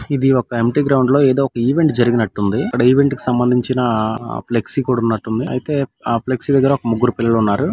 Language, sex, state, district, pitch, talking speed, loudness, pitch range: Telugu, male, Andhra Pradesh, Guntur, 125 Hz, 185 wpm, -16 LUFS, 115-135 Hz